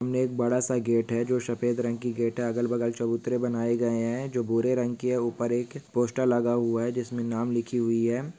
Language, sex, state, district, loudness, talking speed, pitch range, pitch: Hindi, male, Maharashtra, Solapur, -27 LUFS, 235 wpm, 115-125 Hz, 120 Hz